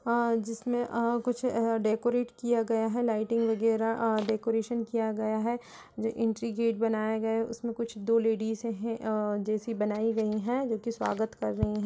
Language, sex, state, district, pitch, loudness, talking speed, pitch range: Hindi, female, Uttar Pradesh, Budaun, 225 Hz, -30 LUFS, 180 wpm, 220-235 Hz